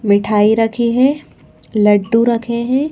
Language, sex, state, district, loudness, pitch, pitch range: Hindi, female, Madhya Pradesh, Bhopal, -14 LUFS, 230 Hz, 210-240 Hz